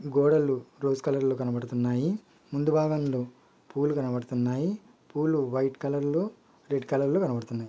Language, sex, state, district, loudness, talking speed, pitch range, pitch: Telugu, male, Andhra Pradesh, Guntur, -28 LUFS, 135 wpm, 125-150 Hz, 140 Hz